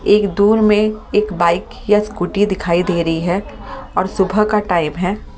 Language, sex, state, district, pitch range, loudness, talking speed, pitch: Hindi, female, Delhi, New Delhi, 175-210 Hz, -16 LUFS, 180 wpm, 200 Hz